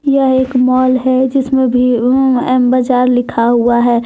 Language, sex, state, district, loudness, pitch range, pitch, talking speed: Hindi, female, Jharkhand, Deoghar, -12 LUFS, 245-260 Hz, 255 Hz, 145 wpm